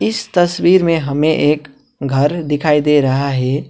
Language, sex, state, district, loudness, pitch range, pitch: Hindi, male, West Bengal, Alipurduar, -15 LUFS, 140-170 Hz, 150 Hz